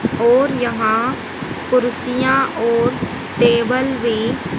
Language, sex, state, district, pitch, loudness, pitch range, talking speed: Hindi, female, Haryana, Rohtak, 245 Hz, -17 LUFS, 235-255 Hz, 80 wpm